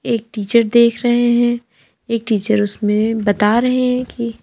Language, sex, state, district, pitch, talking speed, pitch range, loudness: Hindi, female, Uttar Pradesh, Lalitpur, 230 Hz, 160 wpm, 210-240 Hz, -16 LUFS